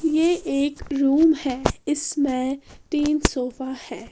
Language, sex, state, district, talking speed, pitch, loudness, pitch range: Hindi, female, Haryana, Jhajjar, 115 wpm, 285 Hz, -22 LUFS, 265-310 Hz